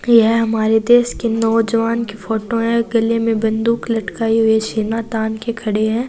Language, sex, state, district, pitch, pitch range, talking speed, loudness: Hindi, female, Rajasthan, Churu, 225 Hz, 220-230 Hz, 175 wpm, -17 LUFS